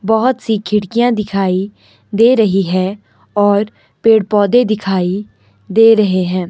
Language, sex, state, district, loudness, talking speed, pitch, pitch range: Hindi, male, Himachal Pradesh, Shimla, -14 LUFS, 130 wpm, 205 Hz, 190-225 Hz